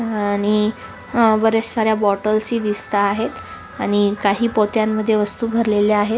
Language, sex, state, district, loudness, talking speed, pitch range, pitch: Marathi, female, Maharashtra, Sindhudurg, -18 LUFS, 145 wpm, 205-225 Hz, 215 Hz